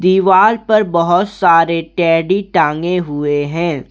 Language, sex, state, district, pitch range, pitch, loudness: Hindi, male, Jharkhand, Garhwa, 165-190 Hz, 170 Hz, -13 LUFS